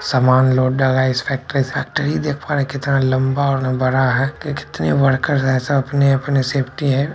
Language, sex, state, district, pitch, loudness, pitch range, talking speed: Hindi, male, Bihar, Purnia, 135 Hz, -17 LUFS, 130-140 Hz, 210 wpm